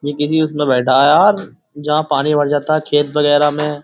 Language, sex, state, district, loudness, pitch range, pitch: Hindi, male, Uttar Pradesh, Jyotiba Phule Nagar, -14 LUFS, 145-150 Hz, 150 Hz